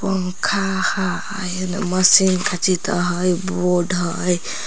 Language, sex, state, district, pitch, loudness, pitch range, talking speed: Magahi, female, Jharkhand, Palamu, 185 Hz, -19 LUFS, 180-190 Hz, 115 wpm